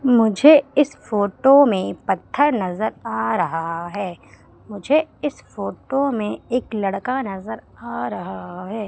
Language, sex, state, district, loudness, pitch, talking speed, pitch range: Hindi, female, Madhya Pradesh, Umaria, -20 LUFS, 215 Hz, 130 wpm, 180-270 Hz